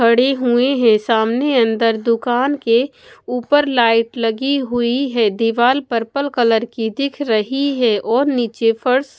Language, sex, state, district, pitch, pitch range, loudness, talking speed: Hindi, female, Bihar, Katihar, 240 Hz, 230-270 Hz, -16 LUFS, 145 wpm